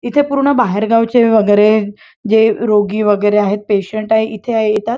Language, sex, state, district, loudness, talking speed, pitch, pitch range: Marathi, female, Maharashtra, Chandrapur, -13 LUFS, 155 wpm, 215 Hz, 210-230 Hz